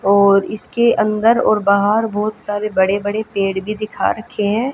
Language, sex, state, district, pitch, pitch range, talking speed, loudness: Hindi, female, Haryana, Jhajjar, 210 Hz, 200-220 Hz, 175 wpm, -16 LUFS